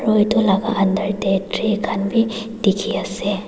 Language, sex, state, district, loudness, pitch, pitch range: Nagamese, female, Nagaland, Dimapur, -19 LUFS, 210 Hz, 195-220 Hz